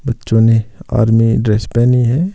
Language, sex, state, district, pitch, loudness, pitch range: Hindi, male, Himachal Pradesh, Shimla, 115 Hz, -13 LUFS, 110-120 Hz